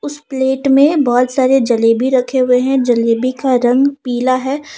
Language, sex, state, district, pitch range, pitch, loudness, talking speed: Hindi, female, Jharkhand, Deoghar, 250-270 Hz, 260 Hz, -13 LUFS, 175 wpm